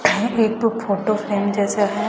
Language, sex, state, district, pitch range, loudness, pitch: Hindi, female, Chhattisgarh, Raipur, 205-225 Hz, -20 LUFS, 210 Hz